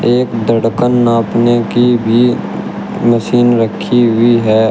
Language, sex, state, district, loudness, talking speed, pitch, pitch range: Hindi, male, Uttar Pradesh, Shamli, -12 LUFS, 115 wpm, 120 Hz, 115-120 Hz